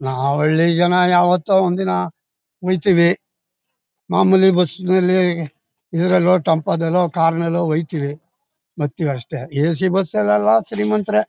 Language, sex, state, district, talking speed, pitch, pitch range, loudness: Kannada, male, Karnataka, Mysore, 110 wpm, 170 Hz, 150-185 Hz, -17 LUFS